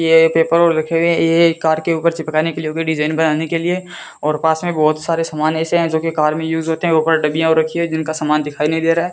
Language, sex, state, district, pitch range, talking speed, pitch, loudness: Hindi, female, Rajasthan, Bikaner, 155-165 Hz, 285 wpm, 160 Hz, -16 LUFS